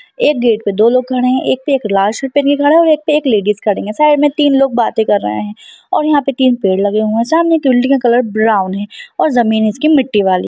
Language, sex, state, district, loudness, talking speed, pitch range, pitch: Hindi, female, Bihar, Lakhisarai, -12 LUFS, 280 wpm, 215-285 Hz, 245 Hz